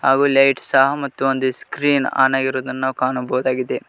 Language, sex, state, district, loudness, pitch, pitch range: Kannada, male, Karnataka, Koppal, -18 LUFS, 135 Hz, 130-135 Hz